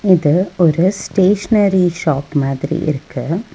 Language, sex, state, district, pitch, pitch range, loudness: Tamil, female, Tamil Nadu, Nilgiris, 170 Hz, 150-190 Hz, -15 LUFS